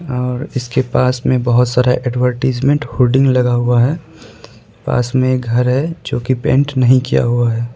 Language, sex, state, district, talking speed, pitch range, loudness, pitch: Hindi, male, Bihar, West Champaran, 180 wpm, 120-130 Hz, -15 LUFS, 125 Hz